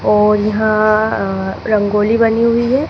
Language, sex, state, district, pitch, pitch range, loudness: Hindi, female, Madhya Pradesh, Dhar, 215 Hz, 210-230 Hz, -14 LUFS